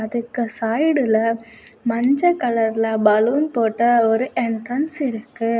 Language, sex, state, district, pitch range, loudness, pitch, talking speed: Tamil, female, Tamil Nadu, Kanyakumari, 225-250 Hz, -19 LUFS, 230 Hz, 95 wpm